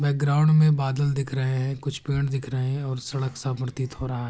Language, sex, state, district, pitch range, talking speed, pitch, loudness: Hindi, male, Uttar Pradesh, Hamirpur, 130-140 Hz, 250 wpm, 135 Hz, -25 LUFS